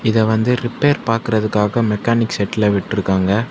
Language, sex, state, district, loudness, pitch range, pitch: Tamil, male, Tamil Nadu, Kanyakumari, -17 LUFS, 105-115 Hz, 110 Hz